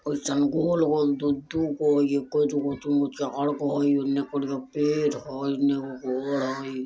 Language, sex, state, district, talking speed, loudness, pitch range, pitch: Hindi, male, Bihar, Vaishali, 140 wpm, -26 LUFS, 140-145 Hz, 145 Hz